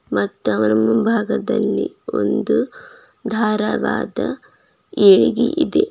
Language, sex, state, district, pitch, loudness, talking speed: Kannada, female, Karnataka, Bidar, 215 Hz, -18 LUFS, 70 wpm